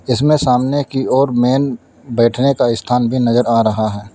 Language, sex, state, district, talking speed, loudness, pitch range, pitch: Hindi, male, Uttar Pradesh, Lalitpur, 185 wpm, -15 LUFS, 115-135 Hz, 125 Hz